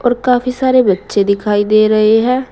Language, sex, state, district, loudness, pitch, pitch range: Hindi, female, Uttar Pradesh, Saharanpur, -12 LUFS, 220 Hz, 210-255 Hz